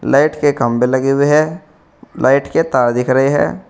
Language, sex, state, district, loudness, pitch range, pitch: Hindi, male, Uttar Pradesh, Saharanpur, -14 LUFS, 130-150 Hz, 140 Hz